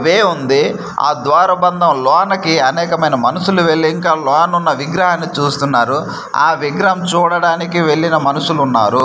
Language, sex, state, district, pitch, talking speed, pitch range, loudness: Telugu, male, Andhra Pradesh, Manyam, 165 Hz, 120 wpm, 145-175 Hz, -13 LUFS